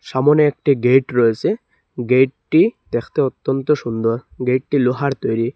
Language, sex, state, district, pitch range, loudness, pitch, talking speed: Bengali, male, Assam, Hailakandi, 120-140 Hz, -18 LUFS, 130 Hz, 120 wpm